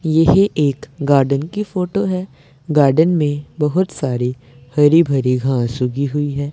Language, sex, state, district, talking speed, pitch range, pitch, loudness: Hindi, male, Punjab, Pathankot, 145 wpm, 135-165 Hz, 145 Hz, -17 LUFS